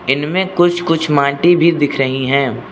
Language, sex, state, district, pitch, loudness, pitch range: Hindi, male, Arunachal Pradesh, Lower Dibang Valley, 145 Hz, -14 LUFS, 140-175 Hz